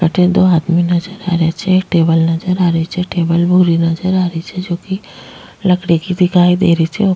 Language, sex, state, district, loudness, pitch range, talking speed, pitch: Rajasthani, female, Rajasthan, Nagaur, -14 LUFS, 170-185 Hz, 220 wpm, 175 Hz